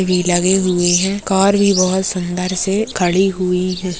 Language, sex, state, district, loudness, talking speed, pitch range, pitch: Hindi, male, Chhattisgarh, Rajnandgaon, -15 LUFS, 165 wpm, 180-190 Hz, 185 Hz